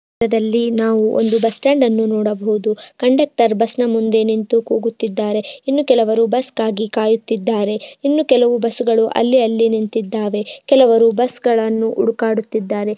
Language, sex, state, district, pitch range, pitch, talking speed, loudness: Kannada, female, Karnataka, Bijapur, 220-240 Hz, 225 Hz, 110 wpm, -16 LUFS